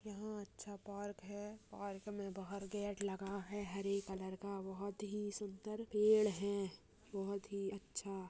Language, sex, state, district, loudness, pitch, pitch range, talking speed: Hindi, female, Uttar Pradesh, Jyotiba Phule Nagar, -43 LUFS, 200 Hz, 195-205 Hz, 160 wpm